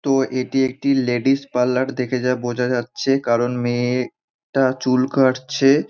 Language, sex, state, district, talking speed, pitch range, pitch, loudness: Bengali, male, West Bengal, North 24 Parganas, 140 wpm, 125-135 Hz, 130 Hz, -20 LUFS